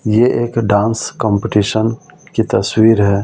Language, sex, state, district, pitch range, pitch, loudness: Hindi, male, Delhi, New Delhi, 105-115 Hz, 110 Hz, -15 LUFS